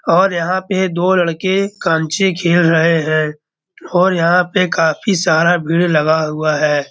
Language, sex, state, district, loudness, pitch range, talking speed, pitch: Hindi, male, Bihar, Darbhanga, -14 LUFS, 160-185 Hz, 155 wpm, 170 Hz